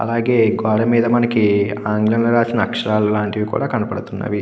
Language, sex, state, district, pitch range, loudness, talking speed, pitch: Telugu, male, Andhra Pradesh, Krishna, 105-115 Hz, -17 LUFS, 135 wpm, 110 Hz